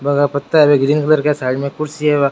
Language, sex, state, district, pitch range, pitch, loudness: Rajasthani, male, Rajasthan, Churu, 140-150 Hz, 145 Hz, -15 LUFS